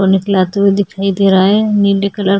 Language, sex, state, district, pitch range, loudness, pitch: Hindi, female, Chhattisgarh, Sukma, 195-200 Hz, -12 LUFS, 195 Hz